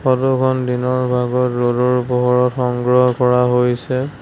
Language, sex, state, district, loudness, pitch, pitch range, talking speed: Assamese, male, Assam, Sonitpur, -16 LUFS, 125 Hz, 125-130 Hz, 115 wpm